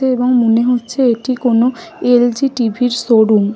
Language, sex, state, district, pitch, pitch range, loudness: Bengali, female, West Bengal, Malda, 245 Hz, 230-250 Hz, -14 LUFS